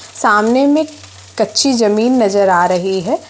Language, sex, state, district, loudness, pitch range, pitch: Hindi, female, Uttar Pradesh, Etah, -13 LUFS, 200-275 Hz, 220 Hz